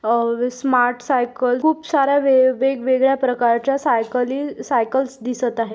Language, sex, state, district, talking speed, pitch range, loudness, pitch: Hindi, female, Maharashtra, Aurangabad, 115 wpm, 245-270 Hz, -19 LUFS, 255 Hz